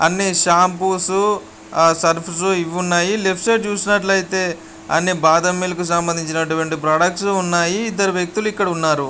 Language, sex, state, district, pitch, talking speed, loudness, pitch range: Telugu, male, Andhra Pradesh, Guntur, 180 Hz, 125 wpm, -17 LUFS, 165-195 Hz